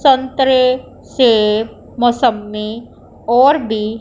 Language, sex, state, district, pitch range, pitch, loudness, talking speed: Hindi, female, Punjab, Pathankot, 220-260 Hz, 240 Hz, -14 LUFS, 75 wpm